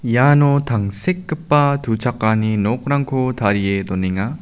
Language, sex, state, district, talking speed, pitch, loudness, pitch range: Garo, male, Meghalaya, South Garo Hills, 80 wpm, 120 Hz, -18 LUFS, 105-140 Hz